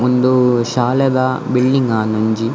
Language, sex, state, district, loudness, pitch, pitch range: Tulu, male, Karnataka, Dakshina Kannada, -15 LUFS, 125 Hz, 115-130 Hz